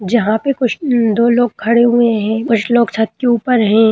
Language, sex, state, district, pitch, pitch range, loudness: Hindi, female, Bihar, Jamui, 235 Hz, 220-240 Hz, -14 LUFS